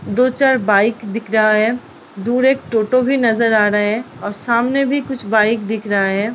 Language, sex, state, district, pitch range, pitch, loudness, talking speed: Hindi, female, Bihar, Gopalganj, 210-250 Hz, 225 Hz, -16 LUFS, 210 wpm